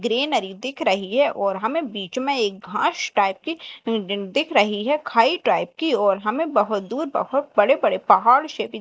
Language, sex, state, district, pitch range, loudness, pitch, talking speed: Hindi, female, Madhya Pradesh, Dhar, 205-290 Hz, -21 LUFS, 230 Hz, 190 wpm